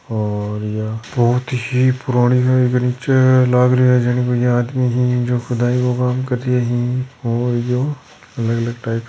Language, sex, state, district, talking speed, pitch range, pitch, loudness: Hindi, male, Rajasthan, Churu, 165 wpm, 120-125 Hz, 125 Hz, -17 LUFS